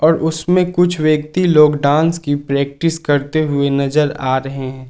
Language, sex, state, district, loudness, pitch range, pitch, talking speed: Hindi, male, Jharkhand, Garhwa, -15 LUFS, 140-160 Hz, 150 Hz, 160 wpm